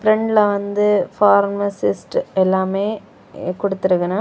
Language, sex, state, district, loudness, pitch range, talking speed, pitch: Tamil, female, Tamil Nadu, Kanyakumari, -18 LUFS, 190-210 Hz, 85 wpm, 200 Hz